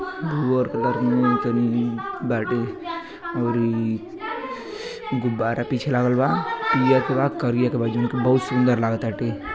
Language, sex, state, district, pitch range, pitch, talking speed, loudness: Bhojpuri, male, Uttar Pradesh, Gorakhpur, 120-165 Hz, 125 Hz, 130 wpm, -23 LUFS